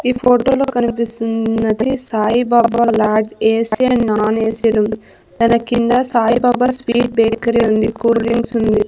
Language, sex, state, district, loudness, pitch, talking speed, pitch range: Telugu, female, Andhra Pradesh, Sri Satya Sai, -15 LUFS, 230 Hz, 135 wpm, 220-245 Hz